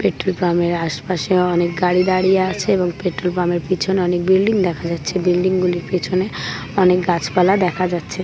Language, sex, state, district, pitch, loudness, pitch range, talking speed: Bengali, female, West Bengal, Paschim Medinipur, 180 Hz, -18 LUFS, 175-185 Hz, 180 wpm